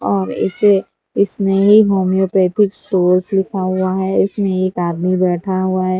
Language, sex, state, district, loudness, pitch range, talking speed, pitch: Hindi, female, Gujarat, Valsad, -15 LUFS, 185-195 Hz, 140 wpm, 185 Hz